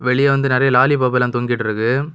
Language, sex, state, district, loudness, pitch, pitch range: Tamil, male, Tamil Nadu, Kanyakumari, -16 LUFS, 125 Hz, 120-135 Hz